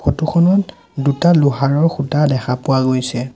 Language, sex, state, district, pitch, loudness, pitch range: Assamese, male, Assam, Sonitpur, 140 Hz, -15 LUFS, 130-165 Hz